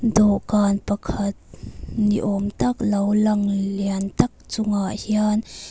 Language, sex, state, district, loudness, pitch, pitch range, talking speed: Mizo, female, Mizoram, Aizawl, -22 LUFS, 205 Hz, 200-215 Hz, 115 wpm